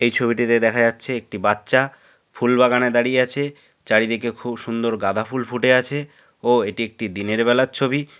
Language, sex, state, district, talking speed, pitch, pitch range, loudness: Bengali, male, West Bengal, North 24 Parganas, 170 wpm, 120 Hz, 115-130 Hz, -20 LUFS